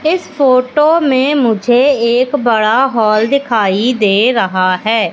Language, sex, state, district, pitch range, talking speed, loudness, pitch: Hindi, female, Madhya Pradesh, Katni, 220-275 Hz, 130 wpm, -12 LUFS, 245 Hz